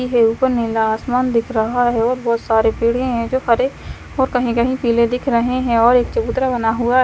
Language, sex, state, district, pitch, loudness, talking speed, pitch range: Hindi, female, Chandigarh, Chandigarh, 240 Hz, -17 LUFS, 230 wpm, 230-255 Hz